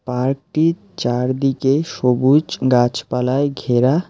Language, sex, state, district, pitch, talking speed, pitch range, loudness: Bengali, male, West Bengal, Alipurduar, 135 Hz, 75 wpm, 125-150 Hz, -18 LUFS